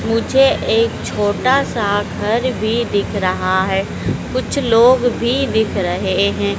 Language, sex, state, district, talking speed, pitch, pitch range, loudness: Hindi, female, Madhya Pradesh, Dhar, 135 wpm, 225 Hz, 200-245 Hz, -16 LUFS